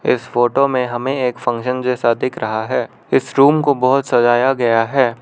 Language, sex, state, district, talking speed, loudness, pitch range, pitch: Hindi, male, Arunachal Pradesh, Lower Dibang Valley, 195 wpm, -16 LUFS, 120-135 Hz, 125 Hz